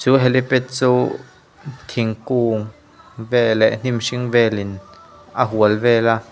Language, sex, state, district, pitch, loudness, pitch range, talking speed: Mizo, male, Mizoram, Aizawl, 120 Hz, -18 LUFS, 110-125 Hz, 135 wpm